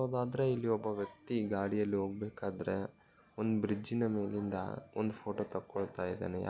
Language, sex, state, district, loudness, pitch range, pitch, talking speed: Kannada, male, Karnataka, Bellary, -37 LUFS, 100-115 Hz, 105 Hz, 130 wpm